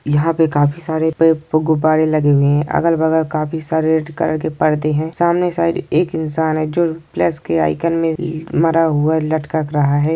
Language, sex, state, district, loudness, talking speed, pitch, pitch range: Hindi, male, Chhattisgarh, Sukma, -16 LUFS, 175 wpm, 160 Hz, 155-165 Hz